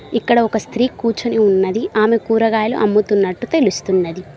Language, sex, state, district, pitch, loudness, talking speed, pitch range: Telugu, female, Telangana, Mahabubabad, 220 Hz, -16 LUFS, 125 wpm, 200-230 Hz